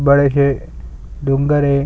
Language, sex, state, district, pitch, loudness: Hindi, male, Chhattisgarh, Sukma, 140 Hz, -16 LUFS